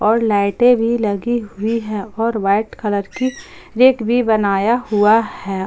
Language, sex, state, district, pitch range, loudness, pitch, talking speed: Hindi, female, Jharkhand, Palamu, 205-240 Hz, -17 LUFS, 220 Hz, 160 wpm